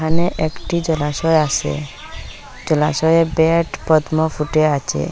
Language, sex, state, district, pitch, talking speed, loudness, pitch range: Bengali, female, Assam, Hailakandi, 155 Hz, 105 wpm, -17 LUFS, 150-165 Hz